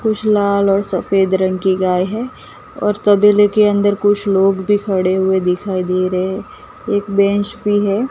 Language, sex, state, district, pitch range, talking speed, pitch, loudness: Hindi, female, Gujarat, Gandhinagar, 190-205 Hz, 185 wpm, 200 Hz, -15 LUFS